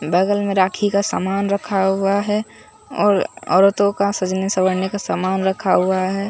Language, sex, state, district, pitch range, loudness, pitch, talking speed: Hindi, male, Bihar, Katihar, 190-200 Hz, -18 LUFS, 195 Hz, 170 wpm